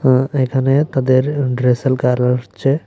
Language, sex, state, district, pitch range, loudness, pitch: Bengali, male, Tripura, West Tripura, 125-135 Hz, -16 LUFS, 130 Hz